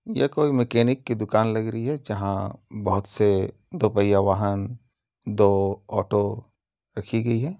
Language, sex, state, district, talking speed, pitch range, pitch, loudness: Hindi, male, Uttar Pradesh, Jalaun, 150 wpm, 100-120 Hz, 110 Hz, -24 LUFS